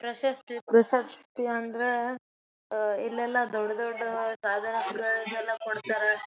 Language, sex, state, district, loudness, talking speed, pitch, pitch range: Kannada, female, Karnataka, Raichur, -29 LUFS, 145 wpm, 230 Hz, 220-240 Hz